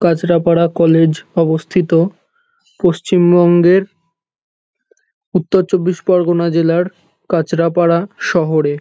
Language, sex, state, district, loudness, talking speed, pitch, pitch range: Bengali, male, West Bengal, North 24 Parganas, -14 LUFS, 70 wpm, 175 Hz, 165-185 Hz